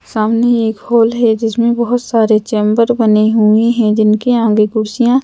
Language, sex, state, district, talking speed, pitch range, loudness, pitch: Hindi, female, Madhya Pradesh, Bhopal, 160 wpm, 215-235 Hz, -12 LUFS, 225 Hz